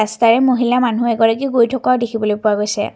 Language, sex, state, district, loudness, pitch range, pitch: Assamese, female, Assam, Kamrup Metropolitan, -15 LUFS, 220-250 Hz, 235 Hz